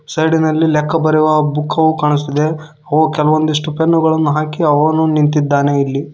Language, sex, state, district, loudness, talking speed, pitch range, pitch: Kannada, male, Karnataka, Koppal, -14 LUFS, 125 wpm, 150-160 Hz, 155 Hz